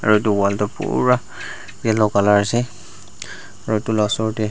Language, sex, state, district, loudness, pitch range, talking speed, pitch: Nagamese, male, Nagaland, Dimapur, -19 LUFS, 100-110 Hz, 160 wpm, 105 Hz